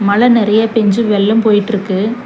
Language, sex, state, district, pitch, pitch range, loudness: Tamil, female, Tamil Nadu, Chennai, 215 Hz, 205-225 Hz, -12 LUFS